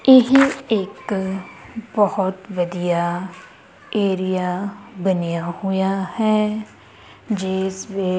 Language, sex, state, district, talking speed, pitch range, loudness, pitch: Punjabi, male, Punjab, Kapurthala, 75 wpm, 185-210 Hz, -21 LUFS, 190 Hz